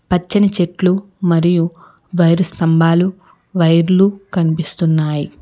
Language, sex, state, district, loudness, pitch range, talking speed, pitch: Telugu, female, Telangana, Hyderabad, -15 LUFS, 165-190 Hz, 80 wpm, 175 Hz